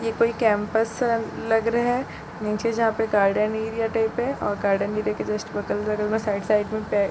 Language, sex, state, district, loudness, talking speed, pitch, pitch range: Hindi, female, Chhattisgarh, Bilaspur, -24 LUFS, 195 wpm, 215 Hz, 210-225 Hz